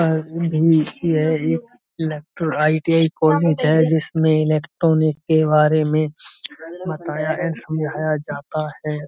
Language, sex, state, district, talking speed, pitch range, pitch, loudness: Hindi, male, Uttar Pradesh, Budaun, 110 wpm, 155-165 Hz, 155 Hz, -19 LUFS